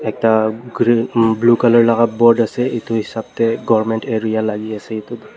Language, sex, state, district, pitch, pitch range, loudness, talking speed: Nagamese, male, Nagaland, Dimapur, 115 Hz, 110-115 Hz, -16 LUFS, 170 wpm